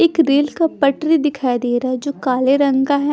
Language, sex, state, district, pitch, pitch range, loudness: Hindi, female, Bihar, Katihar, 280 Hz, 265-300 Hz, -17 LUFS